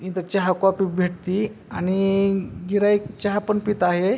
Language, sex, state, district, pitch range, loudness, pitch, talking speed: Marathi, male, Maharashtra, Pune, 185-205 Hz, -22 LUFS, 195 Hz, 145 wpm